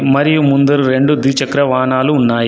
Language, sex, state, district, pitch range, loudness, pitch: Telugu, male, Telangana, Adilabad, 130-145 Hz, -12 LUFS, 135 Hz